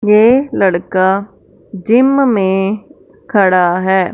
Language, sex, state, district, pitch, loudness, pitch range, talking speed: Hindi, female, Punjab, Fazilka, 200 Hz, -12 LUFS, 190-240 Hz, 85 wpm